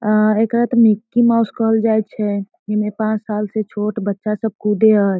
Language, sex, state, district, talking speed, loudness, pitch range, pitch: Maithili, female, Bihar, Darbhanga, 195 wpm, -17 LUFS, 210-225 Hz, 215 Hz